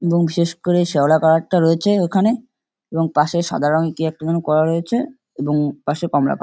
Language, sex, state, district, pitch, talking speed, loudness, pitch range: Bengali, male, West Bengal, Kolkata, 165 Hz, 195 wpm, -18 LUFS, 155-175 Hz